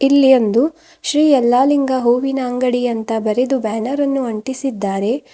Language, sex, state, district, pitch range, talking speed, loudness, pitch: Kannada, female, Karnataka, Bidar, 235-275 Hz, 125 wpm, -16 LUFS, 255 Hz